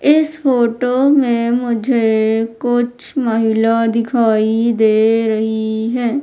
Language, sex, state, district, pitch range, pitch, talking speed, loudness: Hindi, female, Madhya Pradesh, Umaria, 225-245 Hz, 230 Hz, 95 wpm, -15 LUFS